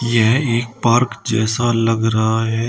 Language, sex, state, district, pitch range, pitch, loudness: Hindi, male, Uttar Pradesh, Shamli, 110-120 Hz, 115 Hz, -17 LUFS